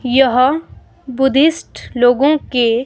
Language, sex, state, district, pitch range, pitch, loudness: Hindi, female, Himachal Pradesh, Shimla, 245-280 Hz, 260 Hz, -14 LUFS